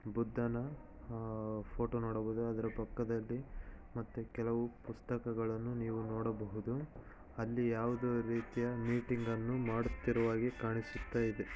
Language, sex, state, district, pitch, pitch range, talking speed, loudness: Kannada, male, Karnataka, Shimoga, 115 Hz, 115-120 Hz, 105 wpm, -39 LUFS